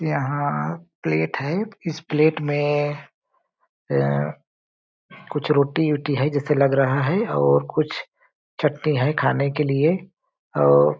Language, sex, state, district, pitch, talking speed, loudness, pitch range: Hindi, male, Chhattisgarh, Balrampur, 145 Hz, 130 wpm, -22 LUFS, 130-155 Hz